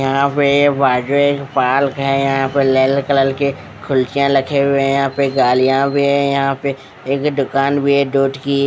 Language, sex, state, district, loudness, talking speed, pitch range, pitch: Hindi, male, Odisha, Khordha, -15 LUFS, 185 wpm, 135-140 Hz, 140 Hz